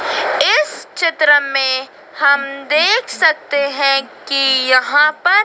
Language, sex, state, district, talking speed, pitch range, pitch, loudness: Hindi, female, Madhya Pradesh, Dhar, 110 wpm, 275-310 Hz, 285 Hz, -14 LUFS